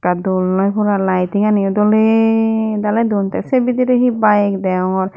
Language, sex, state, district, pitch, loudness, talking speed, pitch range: Chakma, female, Tripura, Dhalai, 210 Hz, -15 LUFS, 160 wpm, 190-225 Hz